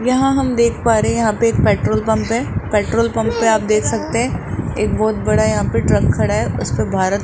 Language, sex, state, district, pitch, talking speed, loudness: Hindi, male, Rajasthan, Jaipur, 190 Hz, 255 wpm, -16 LUFS